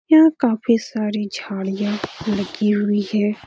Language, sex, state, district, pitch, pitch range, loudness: Hindi, female, Bihar, Lakhisarai, 210 Hz, 205-225 Hz, -20 LUFS